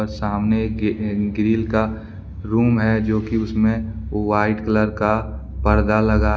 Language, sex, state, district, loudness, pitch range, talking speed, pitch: Hindi, male, Jharkhand, Deoghar, -20 LUFS, 105-110 Hz, 140 wpm, 110 Hz